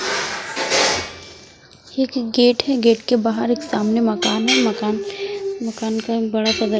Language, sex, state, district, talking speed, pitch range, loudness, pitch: Hindi, female, Odisha, Sambalpur, 125 wpm, 220-250 Hz, -19 LUFS, 230 Hz